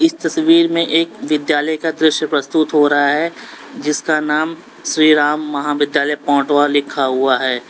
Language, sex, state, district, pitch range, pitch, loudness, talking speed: Hindi, male, Uttar Pradesh, Lalitpur, 145-160 Hz, 150 Hz, -15 LUFS, 155 wpm